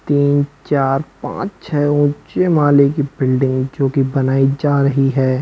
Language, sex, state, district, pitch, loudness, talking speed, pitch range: Hindi, male, Bihar, Sitamarhi, 140 Hz, -16 LUFS, 155 wpm, 135-145 Hz